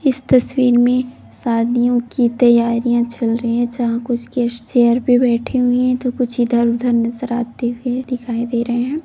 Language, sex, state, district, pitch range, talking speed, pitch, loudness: Hindi, female, Bihar, Begusarai, 235-250 Hz, 180 wpm, 240 Hz, -17 LUFS